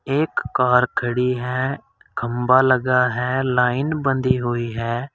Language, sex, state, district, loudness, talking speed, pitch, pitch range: Hindi, male, Uttar Pradesh, Saharanpur, -20 LUFS, 130 wpm, 125 Hz, 125-130 Hz